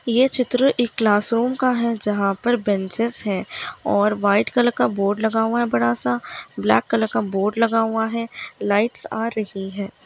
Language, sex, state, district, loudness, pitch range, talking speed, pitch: Hindi, female, Uttarakhand, Tehri Garhwal, -21 LUFS, 200-240 Hz, 180 wpm, 225 Hz